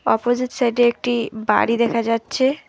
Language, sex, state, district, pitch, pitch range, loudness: Bengali, female, West Bengal, Alipurduar, 235 Hz, 230-245 Hz, -19 LUFS